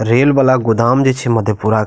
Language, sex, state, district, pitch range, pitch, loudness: Maithili, male, Bihar, Madhepura, 110-130 Hz, 115 Hz, -13 LUFS